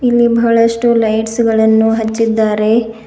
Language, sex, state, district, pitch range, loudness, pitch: Kannada, female, Karnataka, Bidar, 220-230 Hz, -12 LUFS, 225 Hz